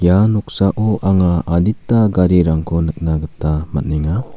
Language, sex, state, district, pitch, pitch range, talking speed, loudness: Garo, male, Meghalaya, South Garo Hills, 90 Hz, 80-105 Hz, 110 wpm, -16 LUFS